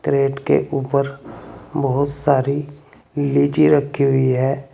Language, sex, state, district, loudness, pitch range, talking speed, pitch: Hindi, male, Uttar Pradesh, Saharanpur, -18 LUFS, 135-145 Hz, 115 wpm, 140 Hz